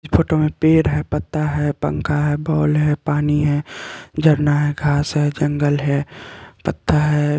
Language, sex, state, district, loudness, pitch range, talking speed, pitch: Hindi, male, Chandigarh, Chandigarh, -18 LUFS, 145-150 Hz, 160 wpm, 150 Hz